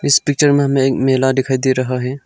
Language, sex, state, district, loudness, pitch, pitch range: Hindi, male, Arunachal Pradesh, Lower Dibang Valley, -15 LUFS, 130 Hz, 130-135 Hz